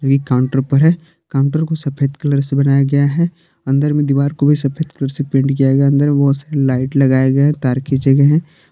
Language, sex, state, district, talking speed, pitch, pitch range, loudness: Hindi, male, Jharkhand, Palamu, 245 wpm, 140 Hz, 135-150 Hz, -15 LUFS